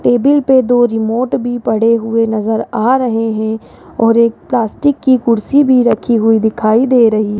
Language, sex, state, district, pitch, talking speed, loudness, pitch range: Hindi, female, Rajasthan, Jaipur, 230 Hz, 185 wpm, -12 LUFS, 225-250 Hz